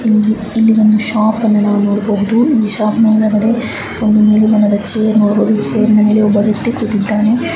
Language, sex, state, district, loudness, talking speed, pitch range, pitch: Kannada, female, Karnataka, Bijapur, -12 LUFS, 95 wpm, 210-220 Hz, 215 Hz